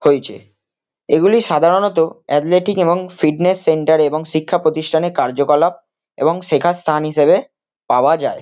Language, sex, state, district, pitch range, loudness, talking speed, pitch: Bengali, male, West Bengal, Kolkata, 150-175 Hz, -15 LUFS, 120 wpm, 160 Hz